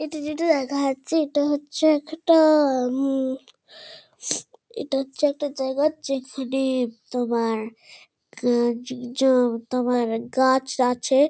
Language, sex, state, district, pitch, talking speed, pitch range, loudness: Bengali, female, West Bengal, Kolkata, 265 Hz, 90 wpm, 250-295 Hz, -23 LUFS